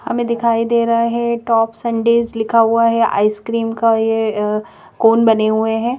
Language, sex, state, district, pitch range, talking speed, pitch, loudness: Hindi, female, Madhya Pradesh, Bhopal, 225-235 Hz, 170 wpm, 230 Hz, -15 LUFS